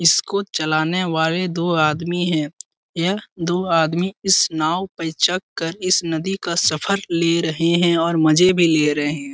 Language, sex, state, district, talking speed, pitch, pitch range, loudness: Hindi, male, Bihar, Lakhisarai, 175 wpm, 170 Hz, 160-180 Hz, -19 LUFS